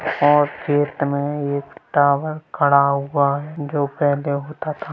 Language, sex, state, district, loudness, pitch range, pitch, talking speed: Hindi, male, Bihar, Gaya, -20 LUFS, 140-150 Hz, 145 Hz, 145 wpm